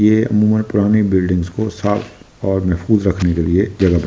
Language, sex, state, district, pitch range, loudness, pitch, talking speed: Hindi, male, Delhi, New Delhi, 90-110 Hz, -16 LUFS, 100 Hz, 220 wpm